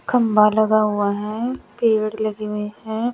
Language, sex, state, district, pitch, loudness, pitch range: Hindi, male, Chandigarh, Chandigarh, 215 Hz, -20 LUFS, 210-225 Hz